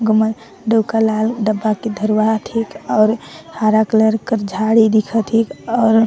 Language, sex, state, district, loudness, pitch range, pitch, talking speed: Sadri, female, Chhattisgarh, Jashpur, -16 LUFS, 215-225 Hz, 220 Hz, 160 wpm